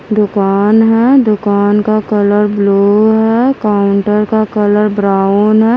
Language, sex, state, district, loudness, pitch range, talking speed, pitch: Hindi, female, Himachal Pradesh, Shimla, -11 LUFS, 205-220 Hz, 125 wpm, 210 Hz